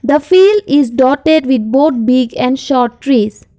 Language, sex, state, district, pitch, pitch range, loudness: English, female, Assam, Kamrup Metropolitan, 270 Hz, 250-295 Hz, -11 LUFS